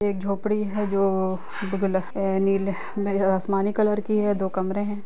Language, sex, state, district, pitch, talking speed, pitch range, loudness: Hindi, female, Bihar, Lakhisarai, 200 Hz, 140 wpm, 195-205 Hz, -24 LUFS